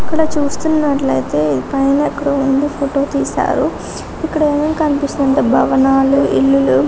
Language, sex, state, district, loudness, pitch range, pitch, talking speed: Telugu, female, Telangana, Karimnagar, -15 LUFS, 265-290 Hz, 280 Hz, 120 wpm